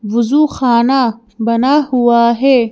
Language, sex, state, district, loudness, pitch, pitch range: Hindi, female, Madhya Pradesh, Bhopal, -12 LUFS, 240 Hz, 235-270 Hz